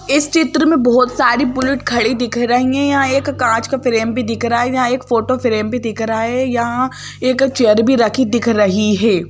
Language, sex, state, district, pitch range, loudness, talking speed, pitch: Hindi, female, Madhya Pradesh, Bhopal, 230-260 Hz, -15 LUFS, 220 wpm, 245 Hz